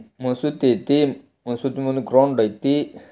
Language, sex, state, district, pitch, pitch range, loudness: Kannada, male, Karnataka, Belgaum, 135 Hz, 130-145 Hz, -21 LUFS